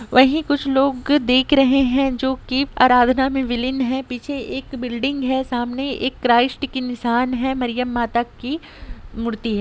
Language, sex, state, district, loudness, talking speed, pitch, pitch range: Hindi, female, Jharkhand, Sahebganj, -19 LUFS, 160 wpm, 260 Hz, 245-270 Hz